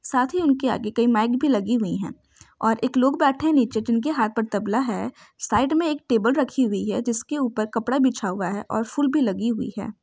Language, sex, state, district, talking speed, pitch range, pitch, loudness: Hindi, female, Bihar, Saran, 245 wpm, 220-270 Hz, 240 Hz, -23 LUFS